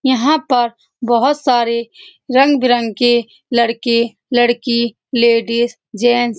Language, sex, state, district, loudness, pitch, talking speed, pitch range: Hindi, female, Bihar, Saran, -15 LUFS, 240 Hz, 95 wpm, 235-255 Hz